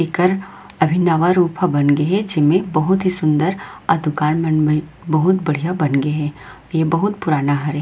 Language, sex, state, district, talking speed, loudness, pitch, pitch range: Chhattisgarhi, female, Chhattisgarh, Rajnandgaon, 185 wpm, -17 LUFS, 165 Hz, 150-180 Hz